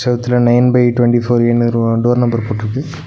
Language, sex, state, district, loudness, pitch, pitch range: Tamil, male, Tamil Nadu, Nilgiris, -13 LUFS, 120 Hz, 120-125 Hz